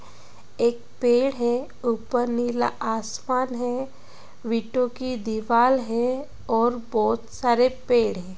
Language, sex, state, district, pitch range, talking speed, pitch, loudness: Hindi, female, Bihar, Jahanabad, 230-255 Hz, 120 wpm, 240 Hz, -24 LUFS